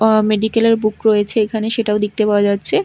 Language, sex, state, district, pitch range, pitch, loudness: Bengali, female, Odisha, Malkangiri, 210-225 Hz, 215 Hz, -16 LUFS